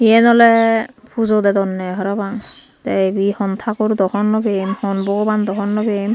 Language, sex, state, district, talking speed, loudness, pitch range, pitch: Chakma, female, Tripura, Unakoti, 145 wpm, -16 LUFS, 195-220 Hz, 205 Hz